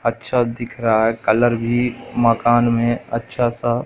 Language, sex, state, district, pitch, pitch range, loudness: Hindi, male, Madhya Pradesh, Katni, 120 Hz, 115-120 Hz, -18 LUFS